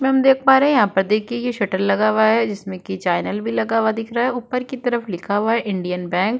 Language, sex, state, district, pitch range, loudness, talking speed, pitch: Hindi, female, Uttar Pradesh, Budaun, 195-245 Hz, -19 LUFS, 300 wpm, 220 Hz